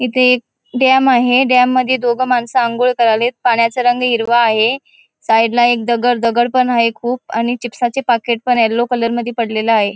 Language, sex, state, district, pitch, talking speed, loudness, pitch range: Marathi, female, Goa, North and South Goa, 240 Hz, 205 wpm, -14 LUFS, 230-250 Hz